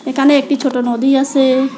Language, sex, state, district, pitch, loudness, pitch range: Bengali, female, West Bengal, Alipurduar, 270 Hz, -13 LUFS, 265-275 Hz